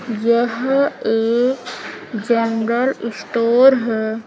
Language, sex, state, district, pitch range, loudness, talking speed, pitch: Hindi, female, Madhya Pradesh, Umaria, 225-255 Hz, -17 LUFS, 70 wpm, 235 Hz